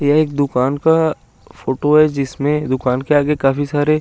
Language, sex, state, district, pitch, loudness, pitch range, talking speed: Hindi, male, Chandigarh, Chandigarh, 145 Hz, -16 LUFS, 135-150 Hz, 180 wpm